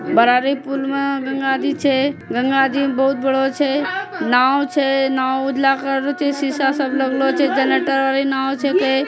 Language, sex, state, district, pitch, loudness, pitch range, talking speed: Angika, female, Bihar, Bhagalpur, 270 Hz, -18 LUFS, 270-280 Hz, 160 wpm